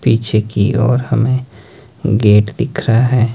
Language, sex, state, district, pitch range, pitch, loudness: Hindi, male, Himachal Pradesh, Shimla, 110-125 Hz, 115 Hz, -14 LUFS